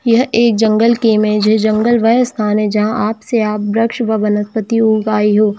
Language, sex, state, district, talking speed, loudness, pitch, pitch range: Hindi, female, Jharkhand, Jamtara, 205 wpm, -13 LUFS, 220 Hz, 210-230 Hz